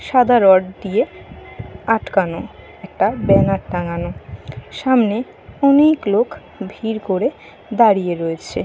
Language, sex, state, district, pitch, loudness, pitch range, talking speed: Bengali, female, Jharkhand, Jamtara, 215 Hz, -17 LUFS, 185-245 Hz, 95 wpm